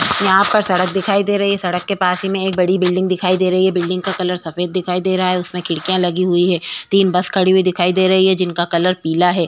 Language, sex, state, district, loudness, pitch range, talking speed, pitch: Hindi, female, Uttar Pradesh, Jyotiba Phule Nagar, -16 LUFS, 180-190 Hz, 280 wpm, 185 Hz